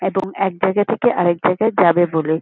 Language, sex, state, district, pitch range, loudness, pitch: Bengali, female, West Bengal, Kolkata, 170-205 Hz, -17 LUFS, 185 Hz